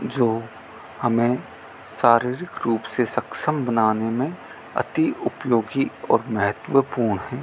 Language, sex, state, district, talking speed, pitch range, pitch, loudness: Hindi, male, Rajasthan, Bikaner, 105 wpm, 110-130 Hz, 120 Hz, -23 LUFS